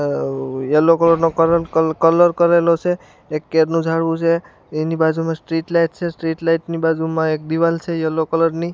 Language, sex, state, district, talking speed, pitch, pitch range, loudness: Gujarati, male, Gujarat, Gandhinagar, 180 wpm, 165 Hz, 160-165 Hz, -17 LUFS